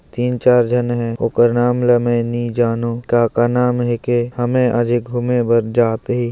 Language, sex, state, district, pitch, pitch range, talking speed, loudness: Hindi, male, Chhattisgarh, Jashpur, 120 Hz, 120-125 Hz, 190 wpm, -16 LUFS